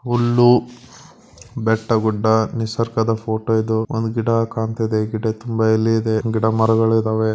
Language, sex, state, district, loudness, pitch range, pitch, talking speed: Kannada, male, Karnataka, Belgaum, -18 LUFS, 110-115 Hz, 110 Hz, 130 wpm